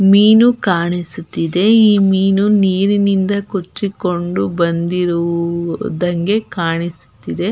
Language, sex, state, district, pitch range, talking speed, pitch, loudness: Kannada, female, Karnataka, Belgaum, 170-200 Hz, 65 wpm, 185 Hz, -15 LUFS